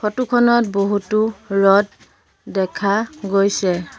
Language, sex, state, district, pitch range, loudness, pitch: Assamese, female, Assam, Sonitpur, 195-220 Hz, -18 LUFS, 200 Hz